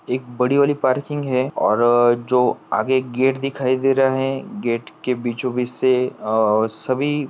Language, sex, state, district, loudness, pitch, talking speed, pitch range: Hindi, male, Maharashtra, Pune, -19 LUFS, 130 Hz, 175 wpm, 120-135 Hz